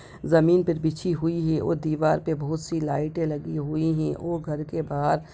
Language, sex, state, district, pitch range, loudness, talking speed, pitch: Hindi, female, Bihar, Sitamarhi, 155-165 Hz, -25 LUFS, 215 wpm, 160 Hz